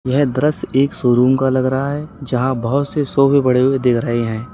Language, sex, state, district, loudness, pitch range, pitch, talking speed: Hindi, male, Uttar Pradesh, Lalitpur, -16 LUFS, 125-140 Hz, 130 Hz, 225 wpm